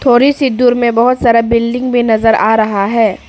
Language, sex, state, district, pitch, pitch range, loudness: Hindi, female, Arunachal Pradesh, Papum Pare, 235 Hz, 225-245 Hz, -11 LUFS